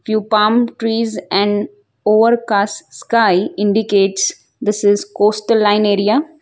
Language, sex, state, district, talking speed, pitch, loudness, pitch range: English, female, Gujarat, Valsad, 110 wpm, 210 Hz, -15 LUFS, 205-230 Hz